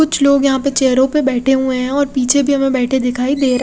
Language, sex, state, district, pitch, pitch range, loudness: Hindi, female, Odisha, Khordha, 265 Hz, 255-280 Hz, -14 LUFS